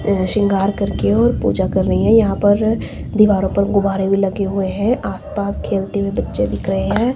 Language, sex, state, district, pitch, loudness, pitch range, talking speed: Hindi, female, Himachal Pradesh, Shimla, 200 Hz, -17 LUFS, 195-210 Hz, 195 wpm